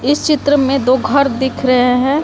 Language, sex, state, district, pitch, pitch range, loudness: Hindi, female, Jharkhand, Palamu, 270 Hz, 255-285 Hz, -13 LUFS